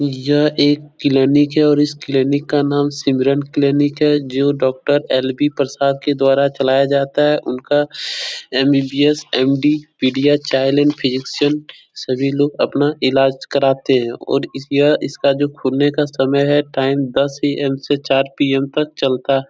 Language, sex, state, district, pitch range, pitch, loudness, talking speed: Hindi, male, Bihar, Jahanabad, 135-145 Hz, 140 Hz, -16 LUFS, 160 wpm